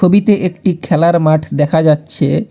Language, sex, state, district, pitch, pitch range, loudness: Bengali, male, West Bengal, Alipurduar, 170 Hz, 155-185 Hz, -13 LUFS